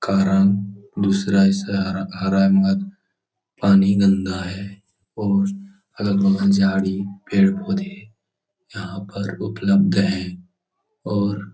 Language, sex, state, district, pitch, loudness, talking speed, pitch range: Hindi, male, Bihar, Jahanabad, 100 Hz, -20 LUFS, 90 wpm, 95-105 Hz